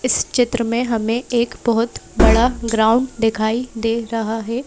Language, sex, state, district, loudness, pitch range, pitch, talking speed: Hindi, female, Madhya Pradesh, Bhopal, -18 LUFS, 225-245 Hz, 230 Hz, 155 wpm